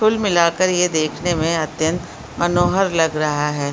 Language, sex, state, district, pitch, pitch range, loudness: Hindi, female, Uttarakhand, Uttarkashi, 170 Hz, 155-180 Hz, -18 LUFS